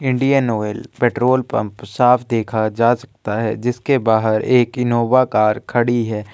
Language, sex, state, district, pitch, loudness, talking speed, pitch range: Hindi, male, Chhattisgarh, Kabirdham, 120 Hz, -17 LUFS, 150 wpm, 110-125 Hz